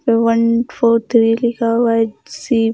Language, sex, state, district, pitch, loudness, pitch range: Hindi, female, Bihar, Patna, 230 Hz, -15 LUFS, 230-235 Hz